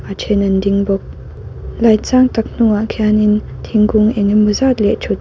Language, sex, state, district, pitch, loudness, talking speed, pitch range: Mizo, female, Mizoram, Aizawl, 215 Hz, -14 LUFS, 160 wpm, 205-225 Hz